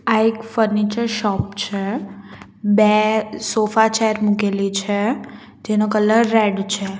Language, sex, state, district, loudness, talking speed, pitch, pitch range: Gujarati, female, Gujarat, Valsad, -18 LUFS, 120 wpm, 215 Hz, 205-220 Hz